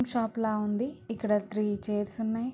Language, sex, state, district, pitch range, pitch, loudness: Telugu, female, Telangana, Nalgonda, 210-230 Hz, 220 Hz, -31 LUFS